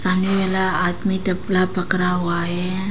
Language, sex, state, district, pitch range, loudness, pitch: Hindi, female, Arunachal Pradesh, Papum Pare, 180-190 Hz, -20 LUFS, 185 Hz